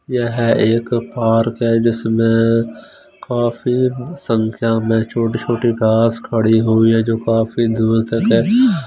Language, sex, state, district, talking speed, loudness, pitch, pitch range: Hindi, male, Punjab, Fazilka, 120 wpm, -16 LUFS, 115 Hz, 115-120 Hz